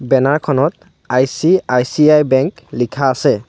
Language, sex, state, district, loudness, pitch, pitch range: Assamese, male, Assam, Sonitpur, -14 LUFS, 135 Hz, 130-150 Hz